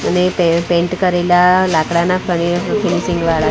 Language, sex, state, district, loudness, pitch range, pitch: Gujarati, female, Gujarat, Gandhinagar, -14 LUFS, 170-180 Hz, 175 Hz